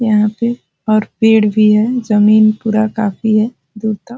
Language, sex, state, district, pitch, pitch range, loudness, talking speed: Hindi, female, Bihar, Jahanabad, 215 Hz, 215-225 Hz, -13 LUFS, 185 wpm